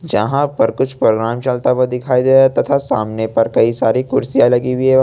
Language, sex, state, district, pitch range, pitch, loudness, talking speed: Hindi, male, Jharkhand, Ranchi, 115-130 Hz, 125 Hz, -15 LUFS, 225 wpm